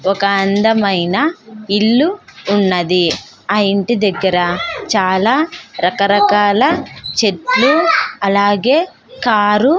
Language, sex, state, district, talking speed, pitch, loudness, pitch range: Telugu, female, Andhra Pradesh, Sri Satya Sai, 80 wpm, 205 Hz, -14 LUFS, 195-250 Hz